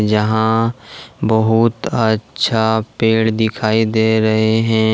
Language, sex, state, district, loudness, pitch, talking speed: Hindi, male, Jharkhand, Deoghar, -16 LUFS, 110 Hz, 95 wpm